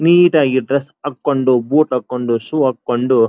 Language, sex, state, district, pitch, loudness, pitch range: Kannada, male, Karnataka, Dharwad, 130 Hz, -16 LUFS, 125-150 Hz